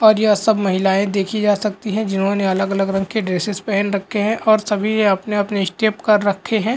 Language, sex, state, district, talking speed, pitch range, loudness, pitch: Hindi, male, Bihar, Lakhisarai, 220 wpm, 195-215 Hz, -18 LUFS, 205 Hz